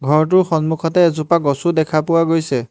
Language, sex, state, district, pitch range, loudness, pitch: Assamese, male, Assam, Hailakandi, 155-170 Hz, -16 LUFS, 160 Hz